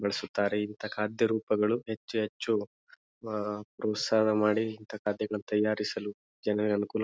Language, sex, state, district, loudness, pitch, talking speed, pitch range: Kannada, male, Karnataka, Bijapur, -31 LUFS, 105 Hz, 130 wpm, 105-110 Hz